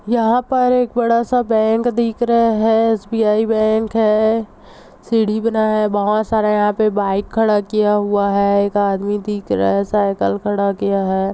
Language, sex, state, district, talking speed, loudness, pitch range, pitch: Hindi, female, Chhattisgarh, Rajnandgaon, 180 wpm, -16 LUFS, 205-225 Hz, 215 Hz